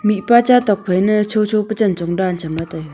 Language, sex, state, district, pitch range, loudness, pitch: Wancho, female, Arunachal Pradesh, Longding, 175-215 Hz, -16 LUFS, 205 Hz